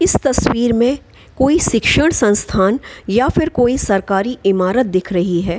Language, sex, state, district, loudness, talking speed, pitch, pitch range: Hindi, female, Bihar, Gaya, -15 LUFS, 160 wpm, 230 Hz, 195-255 Hz